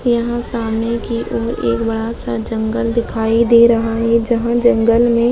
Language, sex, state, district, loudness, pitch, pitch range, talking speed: Hindi, female, Maharashtra, Solapur, -16 LUFS, 230 Hz, 225-235 Hz, 170 wpm